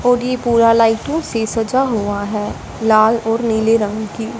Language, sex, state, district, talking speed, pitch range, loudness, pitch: Hindi, female, Punjab, Fazilka, 180 wpm, 220-235 Hz, -16 LUFS, 225 Hz